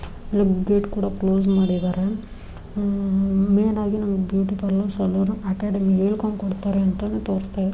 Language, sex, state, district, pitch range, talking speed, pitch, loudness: Kannada, female, Karnataka, Dharwad, 195-205 Hz, 125 wpm, 195 Hz, -22 LUFS